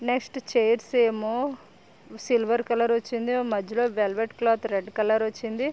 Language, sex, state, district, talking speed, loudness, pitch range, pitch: Telugu, female, Andhra Pradesh, Srikakulam, 125 wpm, -25 LUFS, 220-245 Hz, 235 Hz